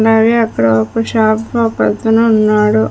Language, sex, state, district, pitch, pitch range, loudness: Telugu, female, Andhra Pradesh, Sri Satya Sai, 220 Hz, 210-225 Hz, -12 LUFS